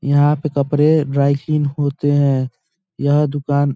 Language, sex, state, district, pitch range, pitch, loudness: Hindi, male, Bihar, Muzaffarpur, 140-150 Hz, 145 Hz, -17 LUFS